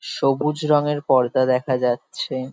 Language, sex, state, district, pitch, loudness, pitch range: Bengali, male, West Bengal, Kolkata, 130 Hz, -20 LUFS, 130-150 Hz